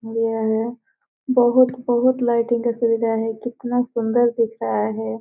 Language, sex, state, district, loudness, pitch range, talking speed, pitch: Hindi, female, Bihar, Gopalganj, -20 LUFS, 225-245 Hz, 105 wpm, 235 Hz